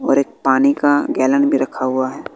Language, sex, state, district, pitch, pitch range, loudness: Hindi, female, Bihar, West Champaran, 135 Hz, 130-140 Hz, -16 LUFS